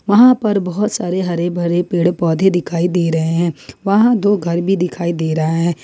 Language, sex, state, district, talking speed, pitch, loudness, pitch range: Hindi, female, Jharkhand, Ranchi, 205 wpm, 175 Hz, -16 LUFS, 170-195 Hz